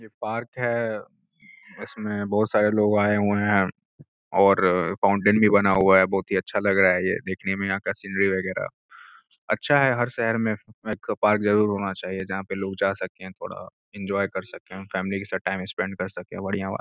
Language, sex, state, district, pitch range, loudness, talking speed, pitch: Hindi, male, Uttar Pradesh, Gorakhpur, 95-105 Hz, -23 LUFS, 205 wpm, 100 Hz